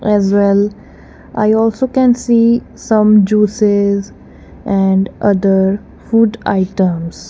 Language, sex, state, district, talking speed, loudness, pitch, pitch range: English, female, Punjab, Kapurthala, 100 wpm, -13 LUFS, 210 Hz, 195-225 Hz